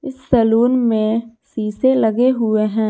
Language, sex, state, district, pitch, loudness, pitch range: Hindi, female, Jharkhand, Garhwa, 230 Hz, -16 LUFS, 220-255 Hz